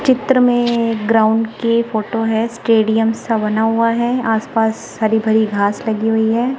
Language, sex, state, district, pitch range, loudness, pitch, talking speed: Hindi, female, Punjab, Kapurthala, 220-235 Hz, -16 LUFS, 225 Hz, 175 wpm